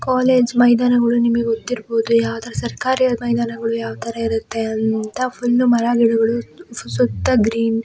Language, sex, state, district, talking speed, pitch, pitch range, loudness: Kannada, male, Karnataka, Chamarajanagar, 115 wpm, 230 Hz, 225-245 Hz, -18 LUFS